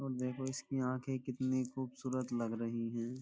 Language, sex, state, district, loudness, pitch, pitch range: Hindi, male, Uttar Pradesh, Jyotiba Phule Nagar, -39 LUFS, 130 Hz, 120-130 Hz